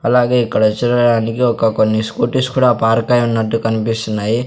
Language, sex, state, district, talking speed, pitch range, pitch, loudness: Telugu, male, Andhra Pradesh, Sri Satya Sai, 135 wpm, 115-120 Hz, 115 Hz, -15 LUFS